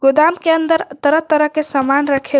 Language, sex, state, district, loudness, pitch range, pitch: Hindi, female, Jharkhand, Garhwa, -15 LUFS, 275-320 Hz, 300 Hz